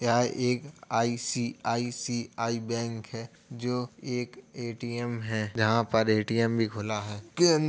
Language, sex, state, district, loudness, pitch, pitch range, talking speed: Hindi, male, Uttar Pradesh, Jalaun, -30 LUFS, 115 Hz, 115-120 Hz, 135 wpm